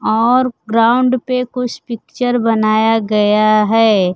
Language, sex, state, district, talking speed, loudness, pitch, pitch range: Hindi, female, Bihar, Kaimur, 115 wpm, -14 LUFS, 225 Hz, 215-250 Hz